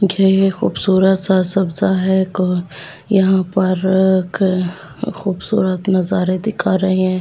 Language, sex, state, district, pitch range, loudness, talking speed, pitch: Hindi, female, Delhi, New Delhi, 185-190 Hz, -16 LUFS, 90 wpm, 190 Hz